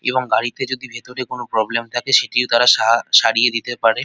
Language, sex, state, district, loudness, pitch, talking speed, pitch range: Bengali, male, West Bengal, North 24 Parganas, -16 LUFS, 120 Hz, 190 wpm, 115-125 Hz